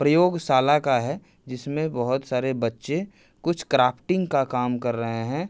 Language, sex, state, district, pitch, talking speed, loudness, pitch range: Hindi, male, Uttar Pradesh, Hamirpur, 135 Hz, 165 wpm, -24 LUFS, 125-155 Hz